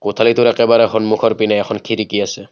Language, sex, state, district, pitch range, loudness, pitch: Assamese, male, Assam, Kamrup Metropolitan, 105-115 Hz, -14 LUFS, 110 Hz